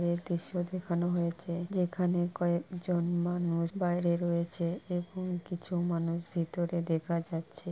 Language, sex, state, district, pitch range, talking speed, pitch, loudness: Bengali, male, West Bengal, Purulia, 170-175 Hz, 115 wpm, 175 Hz, -33 LUFS